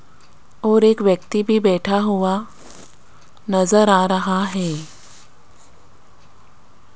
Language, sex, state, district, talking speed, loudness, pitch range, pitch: Hindi, female, Rajasthan, Jaipur, 85 wpm, -18 LUFS, 175-205 Hz, 190 Hz